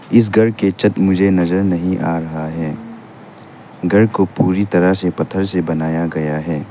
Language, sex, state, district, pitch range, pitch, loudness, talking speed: Hindi, male, Arunachal Pradesh, Lower Dibang Valley, 80-100 Hz, 90 Hz, -16 LUFS, 180 wpm